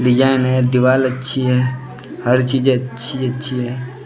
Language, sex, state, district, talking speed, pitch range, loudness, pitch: Hindi, male, Maharashtra, Gondia, 150 wpm, 125-130 Hz, -17 LUFS, 130 Hz